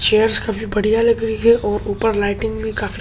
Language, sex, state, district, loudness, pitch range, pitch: Hindi, male, Delhi, New Delhi, -17 LUFS, 210-225 Hz, 220 Hz